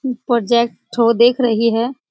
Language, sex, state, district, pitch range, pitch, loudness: Hindi, female, Bihar, Saran, 230-245 Hz, 235 Hz, -16 LUFS